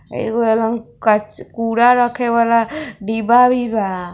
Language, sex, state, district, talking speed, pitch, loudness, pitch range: Hindi, female, Bihar, East Champaran, 145 wpm, 230 Hz, -16 LUFS, 220-240 Hz